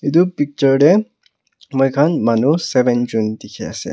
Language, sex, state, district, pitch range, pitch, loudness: Nagamese, male, Nagaland, Kohima, 125-155 Hz, 140 Hz, -16 LUFS